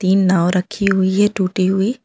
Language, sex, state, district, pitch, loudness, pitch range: Hindi, female, Jharkhand, Ranchi, 190 Hz, -16 LUFS, 185-200 Hz